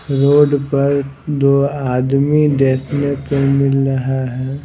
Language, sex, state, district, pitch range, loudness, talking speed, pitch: Hindi, male, Bihar, Patna, 135-140 Hz, -15 LUFS, 130 wpm, 140 Hz